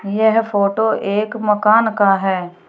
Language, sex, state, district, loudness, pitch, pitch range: Hindi, female, Uttar Pradesh, Shamli, -16 LUFS, 210 Hz, 200-220 Hz